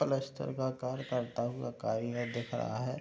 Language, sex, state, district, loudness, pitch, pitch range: Hindi, male, Bihar, Madhepura, -36 LUFS, 125 Hz, 120-130 Hz